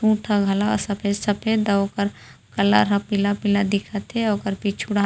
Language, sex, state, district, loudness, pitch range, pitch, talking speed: Chhattisgarhi, female, Chhattisgarh, Rajnandgaon, -22 LUFS, 200-210 Hz, 200 Hz, 200 wpm